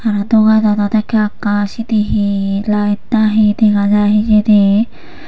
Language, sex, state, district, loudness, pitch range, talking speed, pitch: Chakma, female, Tripura, Unakoti, -13 LUFS, 205-220 Hz, 135 wpm, 210 Hz